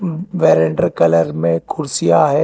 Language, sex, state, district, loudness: Hindi, male, Telangana, Hyderabad, -15 LUFS